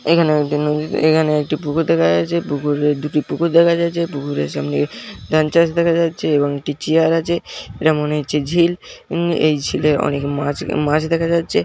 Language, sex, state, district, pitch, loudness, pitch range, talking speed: Bengali, male, West Bengal, Jhargram, 155 Hz, -17 LUFS, 145-165 Hz, 185 wpm